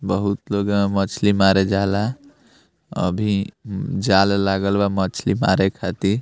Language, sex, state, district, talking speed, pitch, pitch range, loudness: Bhojpuri, male, Bihar, Muzaffarpur, 135 wpm, 100 Hz, 95-100 Hz, -20 LUFS